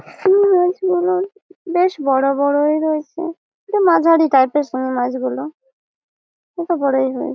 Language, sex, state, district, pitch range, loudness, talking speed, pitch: Bengali, female, West Bengal, Malda, 270-360 Hz, -17 LUFS, 115 wpm, 315 Hz